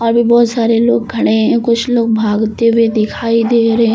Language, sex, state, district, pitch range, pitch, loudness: Hindi, female, Uttar Pradesh, Lucknow, 225-235 Hz, 230 Hz, -12 LUFS